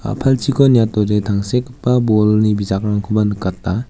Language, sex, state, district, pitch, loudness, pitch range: Garo, male, Meghalaya, West Garo Hills, 105 Hz, -16 LUFS, 105-125 Hz